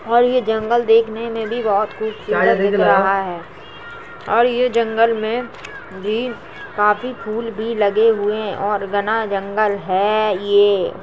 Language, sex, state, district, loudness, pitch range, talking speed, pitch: Hindi, male, Uttar Pradesh, Jalaun, -18 LUFS, 205-230 Hz, 145 wpm, 220 Hz